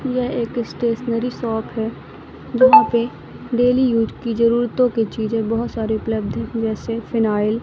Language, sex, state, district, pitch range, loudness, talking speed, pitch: Hindi, female, Madhya Pradesh, Katni, 225-240 Hz, -19 LUFS, 155 wpm, 230 Hz